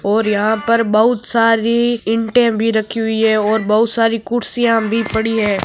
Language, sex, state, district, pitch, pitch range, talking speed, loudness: Marwari, female, Rajasthan, Nagaur, 225 Hz, 220-230 Hz, 170 wpm, -15 LUFS